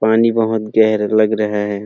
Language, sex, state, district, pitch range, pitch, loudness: Hindi, male, Chhattisgarh, Rajnandgaon, 105-110 Hz, 110 Hz, -15 LUFS